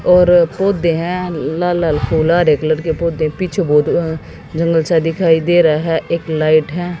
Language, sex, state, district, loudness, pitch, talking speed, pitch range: Hindi, female, Haryana, Jhajjar, -15 LUFS, 165 Hz, 190 wpm, 160-175 Hz